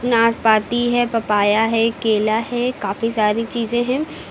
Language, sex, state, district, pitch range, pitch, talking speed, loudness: Hindi, female, Uttar Pradesh, Lucknow, 215-240 Hz, 230 Hz, 140 wpm, -18 LUFS